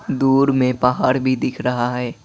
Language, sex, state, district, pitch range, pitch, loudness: Hindi, male, Assam, Kamrup Metropolitan, 125-135 Hz, 130 Hz, -18 LUFS